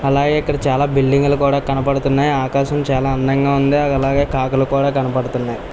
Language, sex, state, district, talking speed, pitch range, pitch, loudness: Telugu, male, Andhra Pradesh, Visakhapatnam, 155 wpm, 135-140 Hz, 140 Hz, -16 LUFS